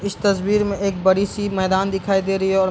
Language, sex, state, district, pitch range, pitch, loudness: Hindi, male, Bihar, Darbhanga, 190-200 Hz, 195 Hz, -19 LUFS